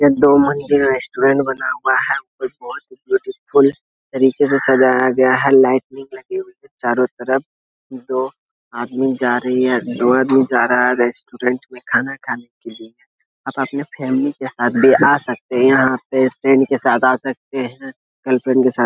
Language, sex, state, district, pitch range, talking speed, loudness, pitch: Hindi, male, Uttar Pradesh, Etah, 125-135 Hz, 185 wpm, -16 LUFS, 130 Hz